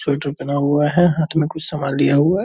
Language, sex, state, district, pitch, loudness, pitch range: Hindi, male, Bihar, Purnia, 150 Hz, -18 LUFS, 140-160 Hz